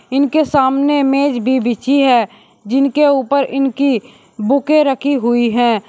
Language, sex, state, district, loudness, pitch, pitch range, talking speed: Hindi, male, Uttar Pradesh, Shamli, -14 LUFS, 270 Hz, 240-280 Hz, 135 wpm